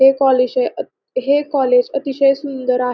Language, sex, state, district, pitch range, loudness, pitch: Marathi, female, Maharashtra, Pune, 255-280 Hz, -16 LUFS, 270 Hz